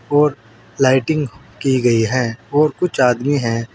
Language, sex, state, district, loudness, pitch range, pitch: Hindi, male, Uttar Pradesh, Saharanpur, -17 LUFS, 115-145 Hz, 130 Hz